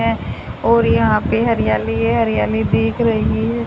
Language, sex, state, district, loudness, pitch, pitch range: Hindi, female, Haryana, Charkhi Dadri, -16 LUFS, 110 Hz, 110-115 Hz